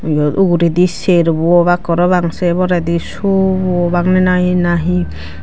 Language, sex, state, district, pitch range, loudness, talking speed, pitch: Chakma, female, Tripura, Dhalai, 170-180 Hz, -13 LUFS, 110 wpm, 175 Hz